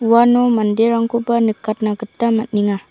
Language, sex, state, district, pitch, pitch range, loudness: Garo, female, Meghalaya, South Garo Hills, 225 Hz, 215-235 Hz, -16 LUFS